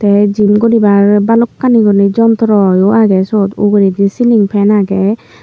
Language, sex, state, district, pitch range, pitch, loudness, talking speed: Chakma, female, Tripura, Unakoti, 200-220 Hz, 205 Hz, -10 LUFS, 145 wpm